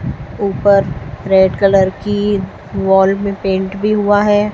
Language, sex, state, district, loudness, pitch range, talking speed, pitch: Hindi, female, Chhattisgarh, Raipur, -14 LUFS, 190-205 Hz, 130 wpm, 195 Hz